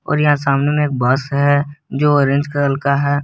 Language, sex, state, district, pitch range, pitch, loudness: Hindi, male, Jharkhand, Garhwa, 140-145 Hz, 145 Hz, -16 LUFS